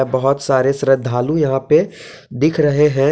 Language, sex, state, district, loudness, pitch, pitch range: Hindi, male, Jharkhand, Deoghar, -16 LUFS, 135 Hz, 130-150 Hz